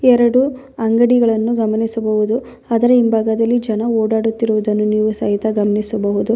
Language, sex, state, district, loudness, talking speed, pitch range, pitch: Kannada, female, Karnataka, Bellary, -16 LUFS, 95 wpm, 215-240 Hz, 225 Hz